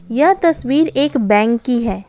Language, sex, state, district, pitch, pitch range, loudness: Hindi, female, Assam, Kamrup Metropolitan, 250 Hz, 230-300 Hz, -15 LUFS